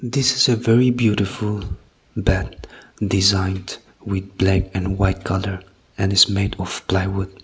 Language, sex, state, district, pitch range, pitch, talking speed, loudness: English, male, Nagaland, Kohima, 95-105 Hz, 95 Hz, 135 wpm, -20 LUFS